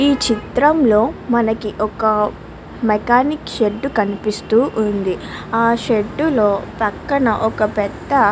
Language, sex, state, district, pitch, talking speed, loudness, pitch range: Telugu, female, Andhra Pradesh, Krishna, 220 Hz, 110 wpm, -17 LUFS, 210-245 Hz